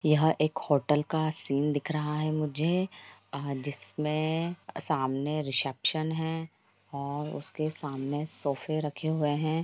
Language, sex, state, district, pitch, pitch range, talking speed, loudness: Hindi, female, Jharkhand, Sahebganj, 155 Hz, 145-160 Hz, 130 wpm, -30 LUFS